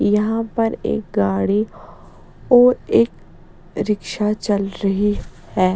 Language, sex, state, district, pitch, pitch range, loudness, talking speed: Hindi, female, Bihar, Patna, 210 Hz, 190-220 Hz, -19 LUFS, 115 wpm